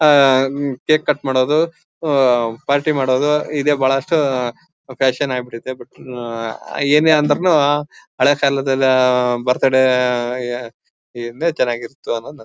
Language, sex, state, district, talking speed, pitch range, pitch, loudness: Kannada, male, Karnataka, Bellary, 95 wpm, 125-145 Hz, 135 Hz, -17 LUFS